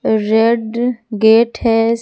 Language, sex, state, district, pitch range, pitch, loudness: Hindi, female, Jharkhand, Palamu, 220-235 Hz, 225 Hz, -14 LUFS